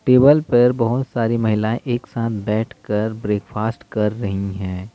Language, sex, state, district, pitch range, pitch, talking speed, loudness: Hindi, male, Uttar Pradesh, Lalitpur, 105-120 Hz, 110 Hz, 145 wpm, -19 LUFS